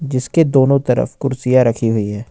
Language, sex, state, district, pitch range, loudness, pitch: Hindi, male, Jharkhand, Ranchi, 115-135 Hz, -15 LUFS, 130 Hz